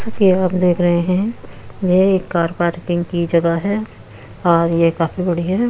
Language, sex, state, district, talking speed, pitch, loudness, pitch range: Hindi, female, Uttar Pradesh, Muzaffarnagar, 190 wpm, 175 Hz, -17 LUFS, 170-185 Hz